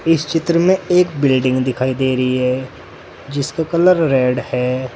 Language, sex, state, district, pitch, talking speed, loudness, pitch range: Hindi, male, Uttar Pradesh, Saharanpur, 130 Hz, 155 wpm, -16 LUFS, 130-165 Hz